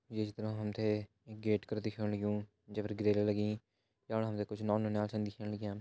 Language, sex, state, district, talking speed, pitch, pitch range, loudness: Hindi, male, Uttarakhand, Tehri Garhwal, 235 wpm, 105 Hz, 105-110 Hz, -37 LUFS